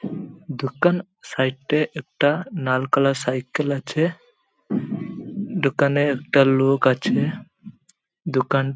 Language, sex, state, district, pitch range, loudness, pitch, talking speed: Bengali, male, West Bengal, Paschim Medinipur, 135-170 Hz, -22 LUFS, 140 Hz, 95 wpm